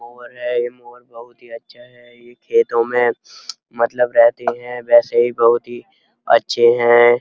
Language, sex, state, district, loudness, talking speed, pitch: Hindi, male, Uttar Pradesh, Muzaffarnagar, -16 LUFS, 150 wpm, 120 Hz